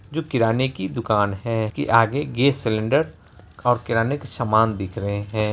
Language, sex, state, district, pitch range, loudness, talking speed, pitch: Hindi, male, Bihar, Araria, 105-125 Hz, -22 LUFS, 185 wpm, 115 Hz